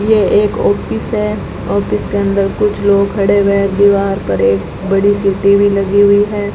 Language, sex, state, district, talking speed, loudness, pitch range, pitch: Hindi, female, Rajasthan, Bikaner, 190 wpm, -13 LUFS, 195-205 Hz, 200 Hz